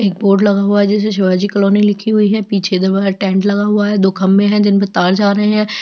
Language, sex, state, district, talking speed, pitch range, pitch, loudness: Hindi, female, Chhattisgarh, Jashpur, 290 wpm, 195-210 Hz, 200 Hz, -13 LUFS